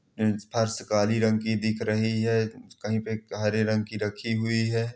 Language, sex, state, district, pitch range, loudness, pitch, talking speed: Hindi, male, Chhattisgarh, Balrampur, 110-115 Hz, -27 LUFS, 110 Hz, 180 wpm